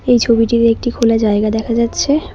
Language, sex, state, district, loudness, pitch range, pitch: Bengali, female, West Bengal, Cooch Behar, -14 LUFS, 225-240 Hz, 230 Hz